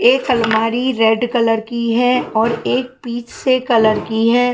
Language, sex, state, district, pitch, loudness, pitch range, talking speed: Hindi, female, Punjab, Kapurthala, 235 Hz, -16 LUFS, 225-250 Hz, 170 wpm